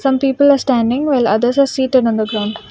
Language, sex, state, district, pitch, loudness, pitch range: English, female, Karnataka, Bangalore, 260 Hz, -14 LUFS, 230-270 Hz